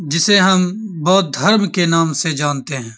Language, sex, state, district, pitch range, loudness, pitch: Hindi, male, Bihar, Begusarai, 150-190 Hz, -15 LUFS, 170 Hz